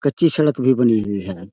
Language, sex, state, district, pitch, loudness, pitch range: Hindi, male, Bihar, Jamui, 125 Hz, -18 LUFS, 100-145 Hz